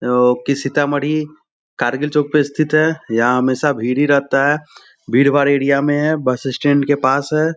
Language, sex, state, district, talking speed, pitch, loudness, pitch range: Hindi, male, Bihar, Sitamarhi, 180 wpm, 140 Hz, -16 LUFS, 130-150 Hz